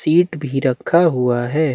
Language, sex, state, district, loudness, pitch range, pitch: Hindi, male, Chhattisgarh, Bastar, -17 LUFS, 125-165 Hz, 145 Hz